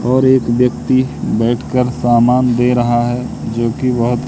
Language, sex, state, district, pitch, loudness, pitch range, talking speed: Hindi, male, Madhya Pradesh, Katni, 125 Hz, -14 LUFS, 120-125 Hz, 155 wpm